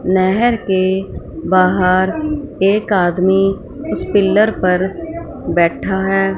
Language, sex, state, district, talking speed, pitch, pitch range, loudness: Hindi, female, Punjab, Fazilka, 95 wpm, 190 Hz, 185-200 Hz, -15 LUFS